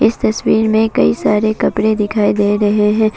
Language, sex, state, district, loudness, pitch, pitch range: Hindi, female, Assam, Kamrup Metropolitan, -14 LUFS, 215 Hz, 210-220 Hz